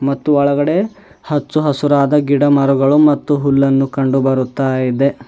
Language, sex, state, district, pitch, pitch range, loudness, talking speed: Kannada, male, Karnataka, Bidar, 140 Hz, 135-145 Hz, -14 LUFS, 100 wpm